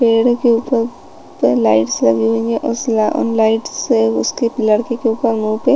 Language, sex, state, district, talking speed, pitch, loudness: Hindi, female, Chhattisgarh, Rajnandgaon, 175 wpm, 220 Hz, -15 LUFS